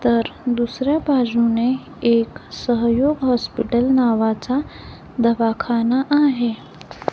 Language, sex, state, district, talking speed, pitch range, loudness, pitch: Marathi, female, Maharashtra, Gondia, 75 wpm, 230-260 Hz, -19 LUFS, 240 Hz